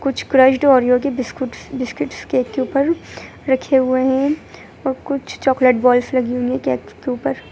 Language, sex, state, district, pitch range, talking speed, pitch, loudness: Hindi, male, Bihar, Gaya, 255-270 Hz, 175 wpm, 260 Hz, -18 LUFS